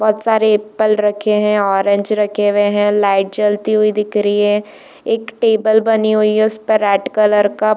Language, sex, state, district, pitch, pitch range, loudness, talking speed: Hindi, female, Chhattisgarh, Bilaspur, 210 Hz, 205-215 Hz, -14 LUFS, 185 wpm